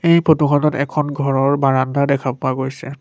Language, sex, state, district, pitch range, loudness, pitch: Assamese, male, Assam, Sonitpur, 135-150 Hz, -17 LUFS, 140 Hz